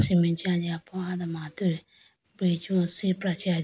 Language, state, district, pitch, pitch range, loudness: Idu Mishmi, Arunachal Pradesh, Lower Dibang Valley, 180 Hz, 170-185 Hz, -22 LUFS